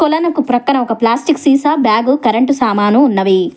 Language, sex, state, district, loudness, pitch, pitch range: Telugu, female, Telangana, Hyderabad, -12 LUFS, 255 Hz, 225-285 Hz